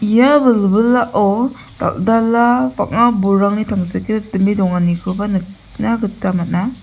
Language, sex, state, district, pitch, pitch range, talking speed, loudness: Garo, female, Meghalaya, West Garo Hills, 210 Hz, 195-235 Hz, 90 wpm, -15 LUFS